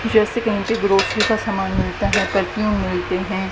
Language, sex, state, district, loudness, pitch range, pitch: Hindi, female, Haryana, Rohtak, -19 LUFS, 190-220 Hz, 205 Hz